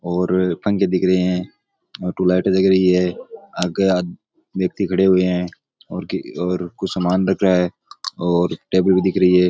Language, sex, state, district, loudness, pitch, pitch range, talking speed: Rajasthani, male, Rajasthan, Nagaur, -18 LUFS, 90 Hz, 90-95 Hz, 165 wpm